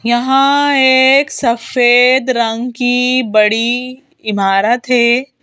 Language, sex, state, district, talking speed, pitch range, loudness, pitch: Hindi, female, Madhya Pradesh, Bhopal, 90 wpm, 235-265 Hz, -12 LUFS, 250 Hz